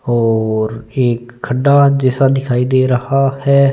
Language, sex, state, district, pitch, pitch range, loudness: Hindi, male, Punjab, Fazilka, 130 Hz, 120-135 Hz, -14 LUFS